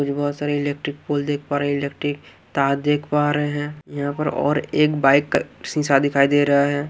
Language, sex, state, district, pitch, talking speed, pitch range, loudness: Hindi, male, Haryana, Jhajjar, 145 Hz, 215 wpm, 140-145 Hz, -21 LUFS